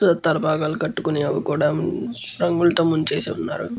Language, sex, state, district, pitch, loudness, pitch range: Telugu, male, Andhra Pradesh, Guntur, 155 Hz, -21 LUFS, 150-170 Hz